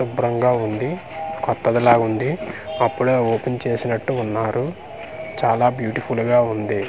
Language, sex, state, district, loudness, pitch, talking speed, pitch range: Telugu, male, Andhra Pradesh, Manyam, -20 LUFS, 120 Hz, 95 wpm, 115-125 Hz